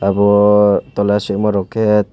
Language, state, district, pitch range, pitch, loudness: Kokborok, Tripura, West Tripura, 100-105 Hz, 105 Hz, -14 LUFS